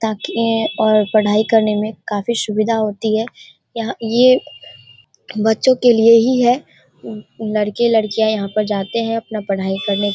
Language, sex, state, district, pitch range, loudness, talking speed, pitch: Hindi, female, Bihar, Darbhanga, 210-230 Hz, -16 LUFS, 150 wpm, 220 Hz